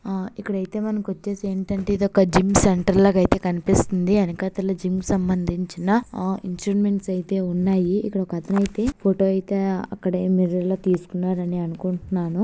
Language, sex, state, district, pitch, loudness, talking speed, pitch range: Telugu, female, Andhra Pradesh, Visakhapatnam, 190 Hz, -22 LUFS, 125 wpm, 185-200 Hz